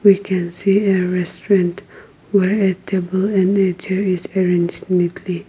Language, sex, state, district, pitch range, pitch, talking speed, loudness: English, female, Nagaland, Kohima, 180-195 Hz, 190 Hz, 155 wpm, -18 LUFS